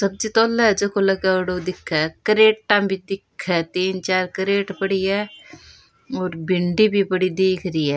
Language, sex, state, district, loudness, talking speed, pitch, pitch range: Rajasthani, female, Rajasthan, Churu, -20 LUFS, 165 wpm, 190 Hz, 185-200 Hz